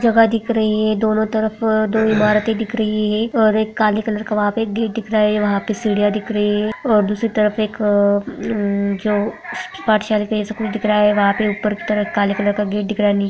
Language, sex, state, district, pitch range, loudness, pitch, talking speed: Hindi, female, Bihar, Jamui, 210-220 Hz, -18 LUFS, 215 Hz, 235 wpm